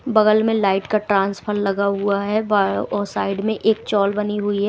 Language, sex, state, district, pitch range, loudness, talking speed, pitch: Hindi, female, Himachal Pradesh, Shimla, 200-215 Hz, -19 LUFS, 205 wpm, 205 Hz